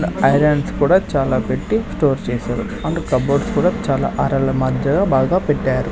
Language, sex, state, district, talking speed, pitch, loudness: Telugu, male, Andhra Pradesh, Sri Satya Sai, 140 wpm, 140 Hz, -18 LUFS